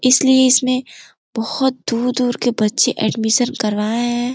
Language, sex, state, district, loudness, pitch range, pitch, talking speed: Hindi, female, Uttar Pradesh, Gorakhpur, -16 LUFS, 225-255 Hz, 245 Hz, 125 wpm